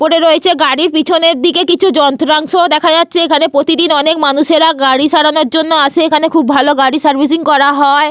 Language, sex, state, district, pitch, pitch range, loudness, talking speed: Bengali, female, Jharkhand, Sahebganj, 310 Hz, 290-330 Hz, -9 LUFS, 175 wpm